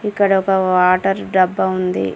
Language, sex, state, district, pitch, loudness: Telugu, female, Telangana, Komaram Bheem, 185 Hz, -16 LUFS